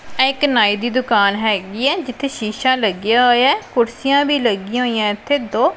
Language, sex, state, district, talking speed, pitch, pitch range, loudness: Punjabi, female, Punjab, Pathankot, 185 wpm, 245 Hz, 215-275 Hz, -16 LUFS